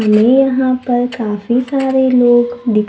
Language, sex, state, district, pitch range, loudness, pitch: Hindi, female, Maharashtra, Gondia, 230-260 Hz, -13 LUFS, 245 Hz